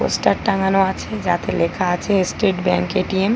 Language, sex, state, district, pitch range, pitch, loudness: Bengali, female, West Bengal, Paschim Medinipur, 180-195 Hz, 190 Hz, -19 LUFS